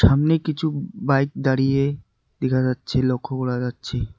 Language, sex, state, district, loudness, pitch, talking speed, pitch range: Bengali, male, West Bengal, Alipurduar, -22 LUFS, 130 Hz, 130 wpm, 125-145 Hz